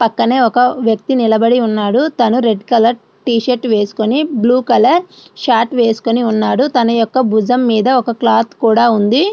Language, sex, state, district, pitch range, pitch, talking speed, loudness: Telugu, female, Andhra Pradesh, Srikakulam, 225-250 Hz, 235 Hz, 135 wpm, -13 LUFS